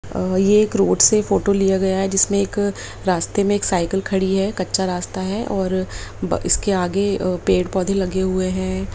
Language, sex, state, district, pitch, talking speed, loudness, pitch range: Hindi, female, Bihar, Lakhisarai, 190 Hz, 195 wpm, -19 LUFS, 185-200 Hz